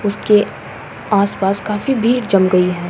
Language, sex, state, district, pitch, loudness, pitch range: Hindi, female, Uttarakhand, Uttarkashi, 205 Hz, -15 LUFS, 190-210 Hz